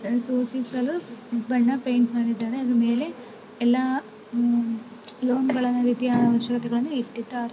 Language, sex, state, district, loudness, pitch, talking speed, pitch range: Kannada, female, Karnataka, Bellary, -24 LUFS, 240 Hz, 95 wpm, 235-250 Hz